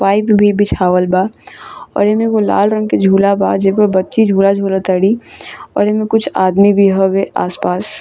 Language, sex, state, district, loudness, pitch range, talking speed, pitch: Bhojpuri, female, Bihar, Saran, -13 LUFS, 190-210 Hz, 180 wpm, 200 Hz